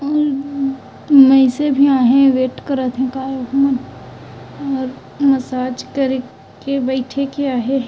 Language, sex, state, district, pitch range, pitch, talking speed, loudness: Chhattisgarhi, female, Chhattisgarh, Raigarh, 255-275 Hz, 265 Hz, 115 wpm, -16 LUFS